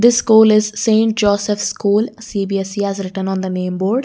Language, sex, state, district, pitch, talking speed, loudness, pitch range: English, female, Karnataka, Bangalore, 205 Hz, 190 wpm, -16 LUFS, 195-220 Hz